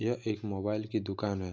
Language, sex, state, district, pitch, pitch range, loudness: Hindi, male, Jharkhand, Jamtara, 105 Hz, 100-110 Hz, -34 LUFS